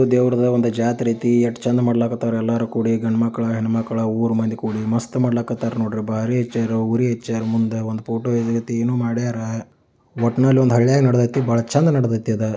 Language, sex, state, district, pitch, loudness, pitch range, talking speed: Kannada, male, Karnataka, Dakshina Kannada, 115 Hz, -20 LUFS, 115-120 Hz, 170 wpm